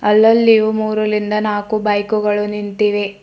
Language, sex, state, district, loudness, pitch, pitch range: Kannada, female, Karnataka, Bidar, -15 LUFS, 210 Hz, 210-215 Hz